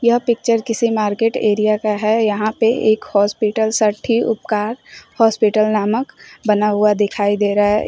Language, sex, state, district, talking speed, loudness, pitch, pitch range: Hindi, female, Uttar Pradesh, Shamli, 160 wpm, -17 LUFS, 215 Hz, 210-230 Hz